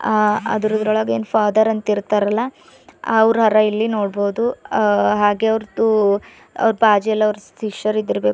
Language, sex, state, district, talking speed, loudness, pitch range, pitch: Kannada, female, Karnataka, Bidar, 100 wpm, -18 LUFS, 210-220 Hz, 215 Hz